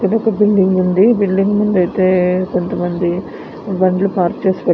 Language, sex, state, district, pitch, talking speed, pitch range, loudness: Telugu, female, Andhra Pradesh, Anantapur, 185 Hz, 175 wpm, 180-200 Hz, -15 LUFS